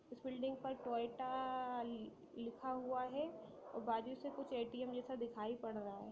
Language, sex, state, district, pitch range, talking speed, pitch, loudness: Hindi, female, Bihar, Sitamarhi, 235-260 Hz, 165 wpm, 255 Hz, -45 LUFS